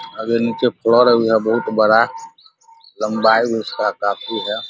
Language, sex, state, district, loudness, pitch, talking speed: Hindi, male, Bihar, Vaishali, -17 LUFS, 115 Hz, 130 wpm